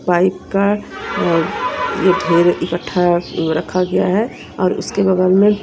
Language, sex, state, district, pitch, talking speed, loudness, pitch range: Hindi, female, Punjab, Kapurthala, 185 Hz, 150 wpm, -16 LUFS, 175-200 Hz